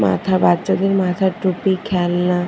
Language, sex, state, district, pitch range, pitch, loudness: Bengali, female, West Bengal, Purulia, 175-190 Hz, 180 Hz, -17 LUFS